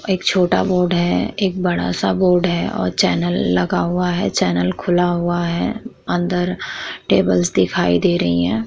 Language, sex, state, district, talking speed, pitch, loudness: Hindi, female, Bihar, Vaishali, 175 wpm, 175 Hz, -18 LUFS